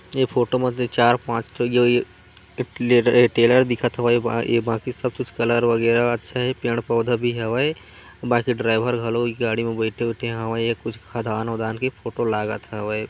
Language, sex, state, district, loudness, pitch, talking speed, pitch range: Chhattisgarhi, male, Chhattisgarh, Korba, -21 LUFS, 120 Hz, 170 wpm, 115-120 Hz